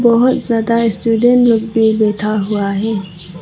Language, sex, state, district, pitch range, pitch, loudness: Hindi, female, Arunachal Pradesh, Lower Dibang Valley, 210-230 Hz, 225 Hz, -14 LUFS